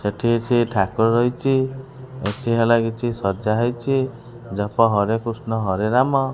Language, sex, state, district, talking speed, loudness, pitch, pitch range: Odia, male, Odisha, Khordha, 130 wpm, -20 LUFS, 115 Hz, 110-125 Hz